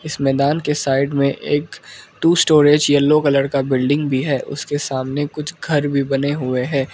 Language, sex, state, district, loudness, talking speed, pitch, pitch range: Hindi, male, Arunachal Pradesh, Lower Dibang Valley, -17 LUFS, 190 wpm, 140 Hz, 135-150 Hz